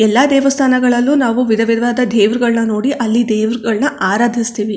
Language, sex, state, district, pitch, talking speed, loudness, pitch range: Kannada, female, Karnataka, Chamarajanagar, 235 Hz, 115 wpm, -14 LUFS, 220-250 Hz